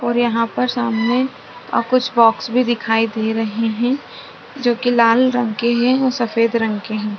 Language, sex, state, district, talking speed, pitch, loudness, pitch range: Hindi, female, Maharashtra, Chandrapur, 185 wpm, 235 Hz, -17 LUFS, 225-245 Hz